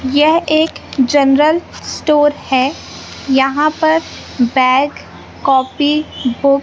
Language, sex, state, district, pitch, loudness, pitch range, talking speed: Hindi, female, Madhya Pradesh, Katni, 280 Hz, -14 LUFS, 265-305 Hz, 90 wpm